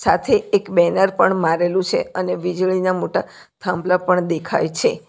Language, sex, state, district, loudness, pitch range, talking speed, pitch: Gujarati, female, Gujarat, Valsad, -19 LUFS, 175-190 Hz, 155 wpm, 185 Hz